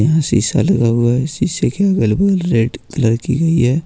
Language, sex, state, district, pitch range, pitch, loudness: Hindi, male, Jharkhand, Ranchi, 120-165 Hz, 145 Hz, -15 LUFS